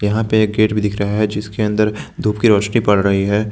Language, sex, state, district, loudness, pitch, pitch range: Hindi, male, Jharkhand, Garhwa, -16 LUFS, 105 Hz, 105-110 Hz